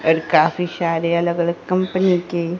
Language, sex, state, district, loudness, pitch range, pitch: Hindi, female, Haryana, Rohtak, -19 LUFS, 170-180 Hz, 170 Hz